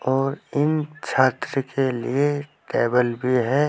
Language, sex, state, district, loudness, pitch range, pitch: Hindi, male, Uttar Pradesh, Saharanpur, -23 LUFS, 125-145 Hz, 135 Hz